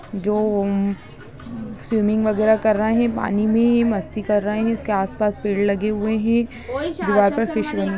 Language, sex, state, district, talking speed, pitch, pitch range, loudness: Hindi, female, Bihar, Gaya, 135 wpm, 210 Hz, 200-220 Hz, -20 LUFS